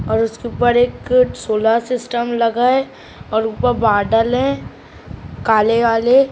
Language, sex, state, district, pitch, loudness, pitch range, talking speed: Maithili, male, Bihar, Saharsa, 235 Hz, -16 LUFS, 225-250 Hz, 125 wpm